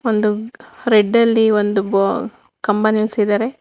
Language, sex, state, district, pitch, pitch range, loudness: Kannada, female, Karnataka, Bangalore, 215 Hz, 210-225 Hz, -17 LUFS